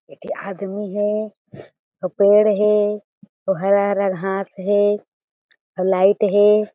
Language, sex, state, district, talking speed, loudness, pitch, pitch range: Chhattisgarhi, female, Chhattisgarh, Jashpur, 125 wpm, -18 LUFS, 200 Hz, 195-210 Hz